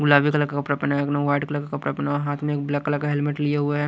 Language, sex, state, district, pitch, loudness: Hindi, male, Haryana, Rohtak, 145 Hz, -23 LUFS